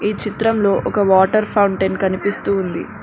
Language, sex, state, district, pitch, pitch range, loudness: Telugu, female, Telangana, Mahabubabad, 200 Hz, 190-210 Hz, -17 LUFS